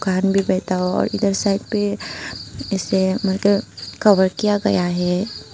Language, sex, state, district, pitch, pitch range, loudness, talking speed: Hindi, female, Tripura, Unakoti, 195 Hz, 185-205 Hz, -19 LUFS, 150 wpm